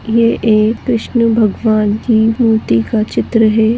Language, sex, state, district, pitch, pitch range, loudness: Hindi, female, Goa, North and South Goa, 220 Hz, 215-230 Hz, -13 LUFS